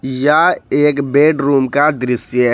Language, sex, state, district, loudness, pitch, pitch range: Hindi, male, Jharkhand, Ranchi, -14 LUFS, 140 Hz, 130-145 Hz